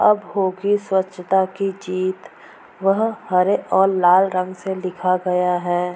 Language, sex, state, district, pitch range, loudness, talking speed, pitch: Hindi, female, Bihar, Purnia, 185-195 Hz, -19 LUFS, 140 wpm, 185 Hz